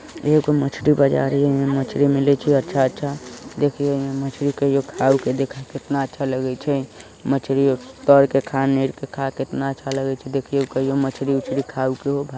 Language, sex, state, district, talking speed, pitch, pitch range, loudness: Hindi, female, Bihar, Sitamarhi, 175 wpm, 135 Hz, 135-140 Hz, -20 LUFS